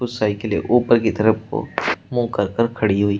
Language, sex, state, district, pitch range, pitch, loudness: Hindi, male, Uttar Pradesh, Shamli, 100-115 Hz, 110 Hz, -19 LUFS